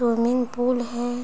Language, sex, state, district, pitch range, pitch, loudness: Hindi, female, Chhattisgarh, Bilaspur, 240-245 Hz, 245 Hz, -24 LUFS